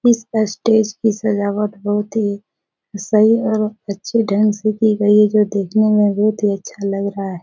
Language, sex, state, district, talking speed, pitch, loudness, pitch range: Hindi, female, Bihar, Jahanabad, 195 wpm, 210 Hz, -17 LUFS, 200-215 Hz